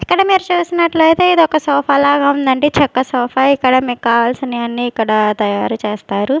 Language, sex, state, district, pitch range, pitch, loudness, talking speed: Telugu, female, Andhra Pradesh, Sri Satya Sai, 235-310 Hz, 265 Hz, -14 LUFS, 150 wpm